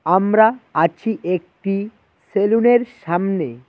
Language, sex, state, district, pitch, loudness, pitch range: Bengali, male, West Bengal, Cooch Behar, 195 Hz, -18 LUFS, 175-225 Hz